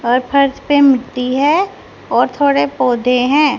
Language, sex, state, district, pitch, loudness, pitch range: Hindi, female, Haryana, Charkhi Dadri, 270 Hz, -14 LUFS, 250-285 Hz